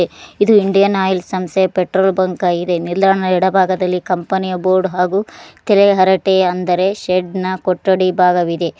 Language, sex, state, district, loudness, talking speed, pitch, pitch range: Kannada, female, Karnataka, Koppal, -15 LUFS, 130 wpm, 185 Hz, 180-190 Hz